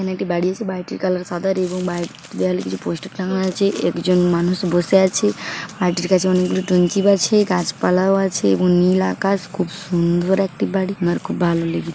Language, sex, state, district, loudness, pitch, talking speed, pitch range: Bengali, female, West Bengal, Paschim Medinipur, -19 LUFS, 180 Hz, 175 wpm, 170-190 Hz